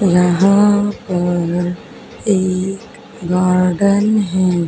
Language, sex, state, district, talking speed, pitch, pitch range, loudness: Hindi, male, Haryana, Charkhi Dadri, 65 wpm, 185 Hz, 180-200 Hz, -15 LUFS